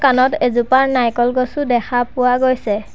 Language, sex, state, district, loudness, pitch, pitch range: Assamese, male, Assam, Sonitpur, -16 LUFS, 250 Hz, 240-260 Hz